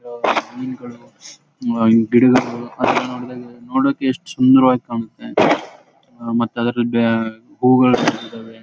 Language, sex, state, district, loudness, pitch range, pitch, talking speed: Kannada, male, Karnataka, Raichur, -17 LUFS, 115-125 Hz, 120 Hz, 75 wpm